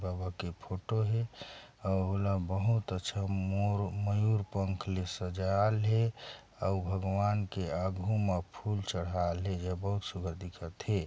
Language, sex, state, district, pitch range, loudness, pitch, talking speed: Chhattisgarhi, male, Chhattisgarh, Sarguja, 90-100 Hz, -34 LUFS, 95 Hz, 135 wpm